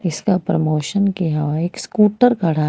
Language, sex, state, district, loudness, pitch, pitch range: Hindi, female, Haryana, Rohtak, -18 LUFS, 175 Hz, 155-200 Hz